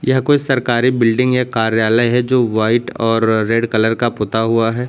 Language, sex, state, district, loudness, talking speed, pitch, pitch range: Hindi, male, Uttar Pradesh, Lucknow, -15 LUFS, 195 wpm, 115 Hz, 115-125 Hz